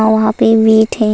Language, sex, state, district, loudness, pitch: Hindi, female, Goa, North and South Goa, -11 LUFS, 220 Hz